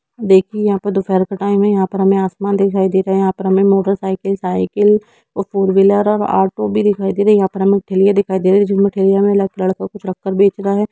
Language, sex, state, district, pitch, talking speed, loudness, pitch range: Hindi, female, Bihar, Jamui, 195 Hz, 260 wpm, -15 LUFS, 190-200 Hz